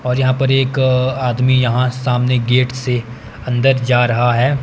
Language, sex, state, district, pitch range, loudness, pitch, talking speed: Hindi, male, Himachal Pradesh, Shimla, 125-130 Hz, -15 LUFS, 125 Hz, 180 wpm